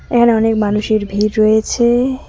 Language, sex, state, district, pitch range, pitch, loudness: Bengali, female, West Bengal, Cooch Behar, 215-235 Hz, 220 Hz, -14 LUFS